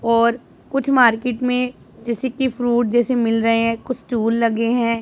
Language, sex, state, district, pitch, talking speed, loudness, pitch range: Hindi, female, Punjab, Pathankot, 240 Hz, 180 wpm, -19 LUFS, 230-250 Hz